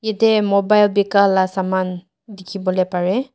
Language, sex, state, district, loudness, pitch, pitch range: Nagamese, female, Nagaland, Dimapur, -17 LUFS, 200 Hz, 185-210 Hz